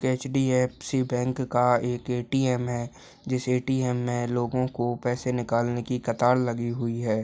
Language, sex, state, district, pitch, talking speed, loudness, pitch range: Hindi, male, Uttar Pradesh, Ghazipur, 125 Hz, 150 wpm, -26 LUFS, 120-125 Hz